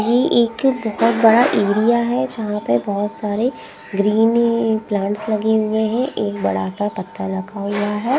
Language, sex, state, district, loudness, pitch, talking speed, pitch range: Hindi, female, Punjab, Pathankot, -18 LUFS, 215 Hz, 170 wpm, 205-230 Hz